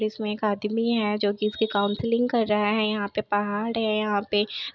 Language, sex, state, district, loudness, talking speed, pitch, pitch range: Hindi, female, Bihar, Begusarai, -25 LUFS, 215 wpm, 210 Hz, 205-220 Hz